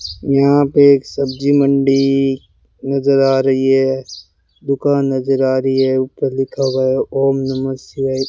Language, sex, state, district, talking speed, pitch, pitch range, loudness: Hindi, male, Rajasthan, Bikaner, 150 wpm, 135 Hz, 130-140 Hz, -15 LUFS